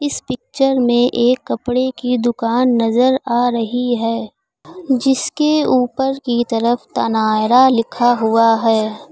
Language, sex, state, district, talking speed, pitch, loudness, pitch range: Hindi, female, Uttar Pradesh, Lucknow, 125 wpm, 245 Hz, -16 LUFS, 230-260 Hz